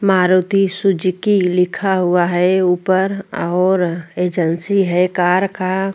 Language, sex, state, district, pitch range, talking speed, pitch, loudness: Hindi, female, Uttarakhand, Tehri Garhwal, 180-195 Hz, 110 wpm, 185 Hz, -16 LUFS